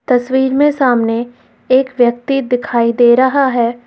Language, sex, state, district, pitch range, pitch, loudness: Hindi, female, Uttar Pradesh, Lucknow, 240-265 Hz, 250 Hz, -13 LUFS